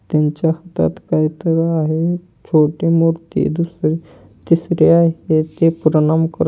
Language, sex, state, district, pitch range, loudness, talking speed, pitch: Marathi, male, Maharashtra, Pune, 155-165 Hz, -16 LUFS, 90 wpm, 165 Hz